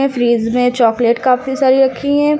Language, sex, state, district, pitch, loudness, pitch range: Hindi, female, Uttar Pradesh, Lucknow, 255 Hz, -14 LUFS, 240-270 Hz